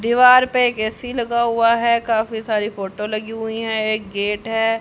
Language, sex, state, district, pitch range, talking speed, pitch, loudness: Hindi, female, Haryana, Charkhi Dadri, 215-235 Hz, 200 wpm, 225 Hz, -19 LUFS